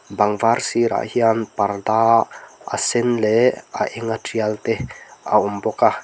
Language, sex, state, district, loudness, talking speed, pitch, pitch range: Mizo, male, Mizoram, Aizawl, -19 LUFS, 160 wpm, 115 Hz, 105-115 Hz